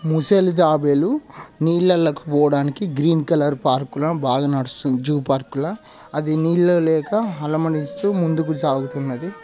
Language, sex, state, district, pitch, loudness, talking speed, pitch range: Telugu, male, Telangana, Karimnagar, 155 Hz, -20 LUFS, 125 wpm, 145-170 Hz